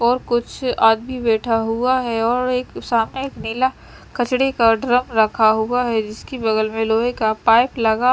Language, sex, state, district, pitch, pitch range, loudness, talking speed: Hindi, female, Chandigarh, Chandigarh, 235 Hz, 225-250 Hz, -18 LUFS, 185 wpm